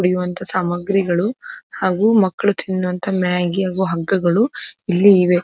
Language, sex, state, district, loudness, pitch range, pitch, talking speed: Kannada, female, Karnataka, Dharwad, -18 LUFS, 180-200 Hz, 185 Hz, 110 wpm